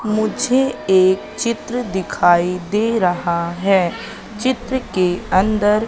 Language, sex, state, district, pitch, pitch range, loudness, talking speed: Hindi, female, Madhya Pradesh, Katni, 205 Hz, 180-230 Hz, -18 LUFS, 100 wpm